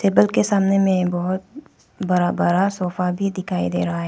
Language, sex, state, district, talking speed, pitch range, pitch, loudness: Hindi, female, Arunachal Pradesh, Papum Pare, 190 wpm, 175-195 Hz, 185 Hz, -20 LUFS